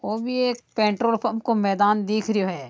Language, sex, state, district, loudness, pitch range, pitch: Marwari, male, Rajasthan, Nagaur, -23 LUFS, 205-230 Hz, 220 Hz